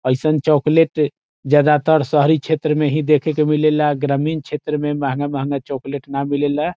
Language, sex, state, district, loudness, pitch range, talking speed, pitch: Bhojpuri, male, Bihar, Saran, -17 LUFS, 140-155 Hz, 170 wpm, 150 Hz